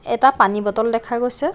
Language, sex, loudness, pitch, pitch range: Assamese, female, -18 LUFS, 240 Hz, 225-265 Hz